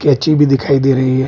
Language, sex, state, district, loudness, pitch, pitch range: Hindi, male, Bihar, Kishanganj, -12 LUFS, 135 Hz, 130-145 Hz